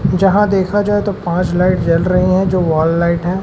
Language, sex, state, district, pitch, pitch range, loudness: Hindi, male, Madhya Pradesh, Umaria, 180 Hz, 170-195 Hz, -14 LUFS